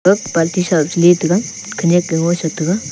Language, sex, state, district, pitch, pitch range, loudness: Wancho, male, Arunachal Pradesh, Longding, 170 Hz, 165-180 Hz, -15 LUFS